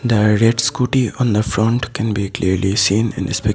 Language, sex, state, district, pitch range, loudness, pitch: English, male, Assam, Sonitpur, 105-120 Hz, -17 LUFS, 110 Hz